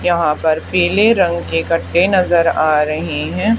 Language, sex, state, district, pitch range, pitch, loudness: Hindi, female, Haryana, Charkhi Dadri, 155-180 Hz, 170 Hz, -15 LUFS